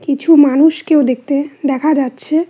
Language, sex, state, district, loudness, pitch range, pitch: Bengali, female, West Bengal, Cooch Behar, -13 LUFS, 275-315 Hz, 290 Hz